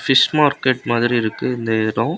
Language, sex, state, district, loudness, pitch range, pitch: Tamil, male, Tamil Nadu, Kanyakumari, -18 LUFS, 115-135 Hz, 120 Hz